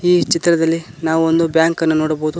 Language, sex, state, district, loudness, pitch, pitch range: Kannada, male, Karnataka, Koppal, -16 LUFS, 165 Hz, 160-170 Hz